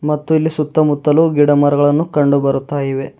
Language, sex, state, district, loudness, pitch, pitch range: Kannada, male, Karnataka, Bidar, -14 LUFS, 145 Hz, 145-155 Hz